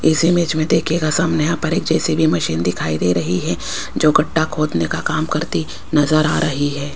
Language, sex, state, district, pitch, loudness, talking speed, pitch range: Hindi, female, Rajasthan, Jaipur, 155 Hz, -18 LUFS, 205 wpm, 140-160 Hz